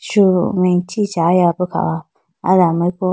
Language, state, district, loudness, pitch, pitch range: Idu Mishmi, Arunachal Pradesh, Lower Dibang Valley, -16 LUFS, 180 Hz, 170-185 Hz